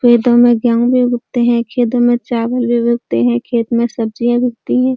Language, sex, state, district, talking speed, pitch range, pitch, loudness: Hindi, female, Uttar Pradesh, Jyotiba Phule Nagar, 215 wpm, 235-245 Hz, 240 Hz, -14 LUFS